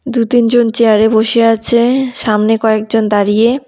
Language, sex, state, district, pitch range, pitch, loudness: Bengali, female, West Bengal, Cooch Behar, 220-240 Hz, 230 Hz, -11 LUFS